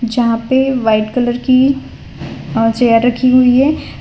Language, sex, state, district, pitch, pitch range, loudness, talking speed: Hindi, female, Gujarat, Valsad, 245 Hz, 230-260 Hz, -13 LUFS, 150 wpm